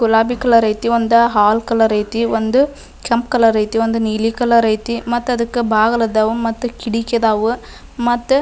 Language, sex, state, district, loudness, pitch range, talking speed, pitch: Kannada, female, Karnataka, Dharwad, -16 LUFS, 225-240 Hz, 165 wpm, 230 Hz